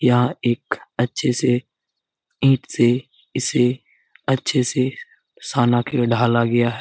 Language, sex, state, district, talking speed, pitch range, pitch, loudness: Hindi, male, Bihar, Lakhisarai, 115 wpm, 120-130 Hz, 125 Hz, -20 LUFS